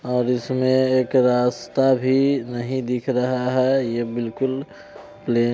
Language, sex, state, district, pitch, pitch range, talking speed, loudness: Hindi, male, Bihar, Vaishali, 125 Hz, 125-130 Hz, 130 wpm, -21 LUFS